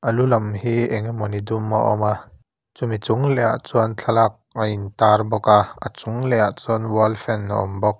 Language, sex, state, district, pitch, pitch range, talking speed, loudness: Mizo, male, Mizoram, Aizawl, 110 Hz, 105-115 Hz, 205 wpm, -20 LUFS